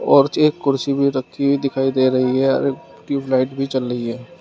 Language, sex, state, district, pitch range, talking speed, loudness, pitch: Hindi, male, Uttar Pradesh, Shamli, 130-140 Hz, 215 wpm, -19 LUFS, 135 Hz